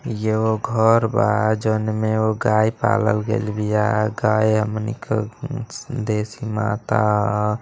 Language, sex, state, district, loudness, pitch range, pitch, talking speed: Bhojpuri, male, Uttar Pradesh, Deoria, -20 LUFS, 105-110 Hz, 110 Hz, 120 wpm